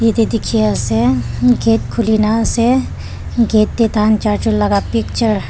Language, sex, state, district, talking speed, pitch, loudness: Nagamese, female, Nagaland, Dimapur, 165 wpm, 210 Hz, -15 LUFS